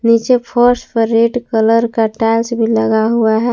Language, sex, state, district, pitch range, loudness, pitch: Hindi, female, Jharkhand, Palamu, 225-235 Hz, -13 LUFS, 230 Hz